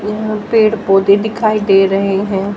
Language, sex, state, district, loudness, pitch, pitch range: Hindi, female, Haryana, Jhajjar, -13 LUFS, 205 Hz, 195-215 Hz